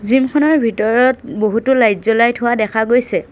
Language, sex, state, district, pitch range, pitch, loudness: Assamese, female, Assam, Sonitpur, 220-260 Hz, 235 Hz, -14 LUFS